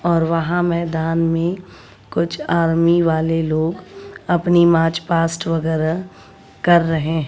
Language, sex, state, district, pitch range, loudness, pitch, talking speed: Hindi, female, Bihar, West Champaran, 165-175 Hz, -18 LUFS, 165 Hz, 115 wpm